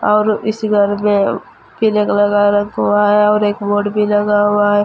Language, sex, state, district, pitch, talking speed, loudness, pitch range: Hindi, female, Uttar Pradesh, Saharanpur, 205 Hz, 210 wpm, -14 LUFS, 205-210 Hz